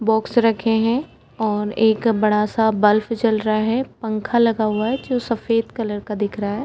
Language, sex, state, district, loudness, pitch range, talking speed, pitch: Hindi, female, Uttar Pradesh, Etah, -20 LUFS, 215-230 Hz, 200 wpm, 220 Hz